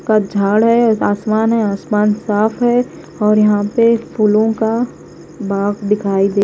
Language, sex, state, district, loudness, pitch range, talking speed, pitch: Hindi, female, Punjab, Kapurthala, -15 LUFS, 205-225 Hz, 150 wpm, 210 Hz